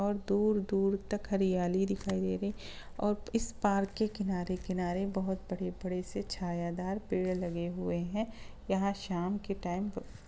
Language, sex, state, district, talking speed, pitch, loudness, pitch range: Hindi, female, Bihar, Gaya, 160 wpm, 195 Hz, -34 LUFS, 180-200 Hz